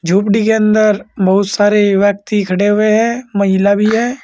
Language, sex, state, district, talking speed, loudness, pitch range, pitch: Hindi, male, Uttar Pradesh, Saharanpur, 170 wpm, -13 LUFS, 200-215 Hz, 205 Hz